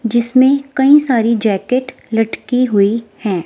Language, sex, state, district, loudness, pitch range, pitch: Hindi, female, Himachal Pradesh, Shimla, -14 LUFS, 225-255 Hz, 235 Hz